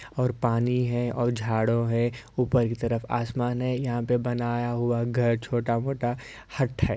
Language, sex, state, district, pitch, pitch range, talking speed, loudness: Hindi, male, Uttar Pradesh, Ghazipur, 120 Hz, 115-125 Hz, 165 wpm, -27 LUFS